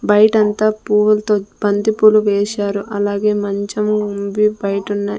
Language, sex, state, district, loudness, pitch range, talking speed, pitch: Telugu, female, Andhra Pradesh, Sri Satya Sai, -16 LUFS, 205-215 Hz, 105 wpm, 210 Hz